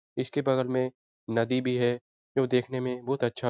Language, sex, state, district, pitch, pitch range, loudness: Hindi, male, Bihar, Jahanabad, 125 Hz, 120-130 Hz, -29 LUFS